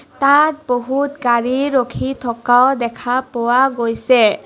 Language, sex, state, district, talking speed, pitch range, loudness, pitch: Assamese, female, Assam, Kamrup Metropolitan, 110 wpm, 240-270 Hz, -16 LUFS, 250 Hz